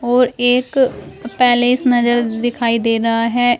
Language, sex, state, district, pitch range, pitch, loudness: Hindi, female, Uttar Pradesh, Shamli, 235-250 Hz, 240 Hz, -15 LUFS